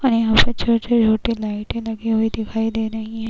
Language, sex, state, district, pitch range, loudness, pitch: Hindi, female, Uttar Pradesh, Jyotiba Phule Nagar, 220-230 Hz, -20 LUFS, 225 Hz